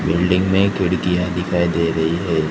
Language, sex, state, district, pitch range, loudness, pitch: Hindi, male, Gujarat, Gandhinagar, 85-90 Hz, -18 LUFS, 90 Hz